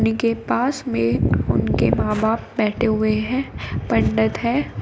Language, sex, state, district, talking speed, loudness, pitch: Hindi, female, Uttar Pradesh, Shamli, 135 wpm, -20 LUFS, 215 Hz